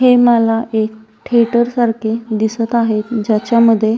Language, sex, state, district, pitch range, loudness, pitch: Marathi, female, Maharashtra, Solapur, 220-235 Hz, -14 LUFS, 230 Hz